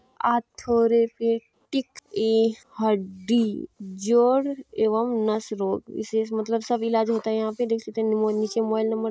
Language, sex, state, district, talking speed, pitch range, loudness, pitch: Hindi, female, Bihar, Jamui, 150 wpm, 220-230 Hz, -24 LUFS, 225 Hz